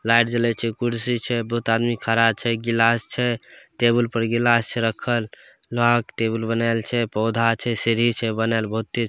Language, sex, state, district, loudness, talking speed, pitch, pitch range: Maithili, male, Bihar, Samastipur, -21 LUFS, 185 wpm, 115 Hz, 115-120 Hz